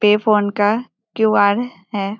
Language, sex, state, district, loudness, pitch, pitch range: Hindi, female, Bihar, Vaishali, -17 LUFS, 210 Hz, 205-220 Hz